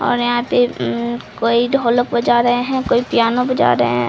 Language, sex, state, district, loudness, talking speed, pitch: Hindi, female, Bihar, Samastipur, -16 LUFS, 205 wpm, 240 Hz